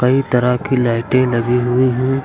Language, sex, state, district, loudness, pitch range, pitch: Hindi, male, Uttar Pradesh, Lucknow, -16 LUFS, 125-130 Hz, 125 Hz